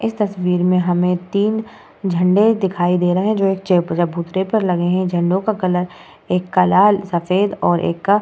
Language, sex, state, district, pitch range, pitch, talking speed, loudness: Hindi, female, Bihar, Vaishali, 175-200 Hz, 185 Hz, 205 wpm, -17 LUFS